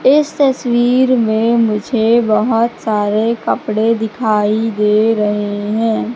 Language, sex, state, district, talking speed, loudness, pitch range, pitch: Hindi, female, Madhya Pradesh, Katni, 105 wpm, -14 LUFS, 215-240 Hz, 225 Hz